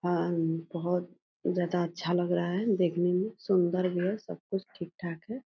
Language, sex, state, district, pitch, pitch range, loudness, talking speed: Hindi, female, Bihar, Purnia, 175 Hz, 175-185 Hz, -30 LUFS, 185 wpm